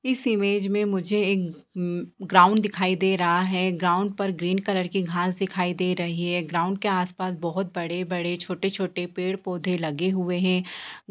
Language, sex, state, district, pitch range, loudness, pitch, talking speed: Hindi, female, Bihar, Purnia, 175-195 Hz, -25 LUFS, 185 Hz, 200 wpm